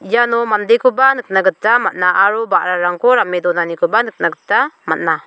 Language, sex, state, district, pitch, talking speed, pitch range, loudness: Garo, female, Meghalaya, South Garo Hills, 210 Hz, 135 wpm, 180-240 Hz, -14 LUFS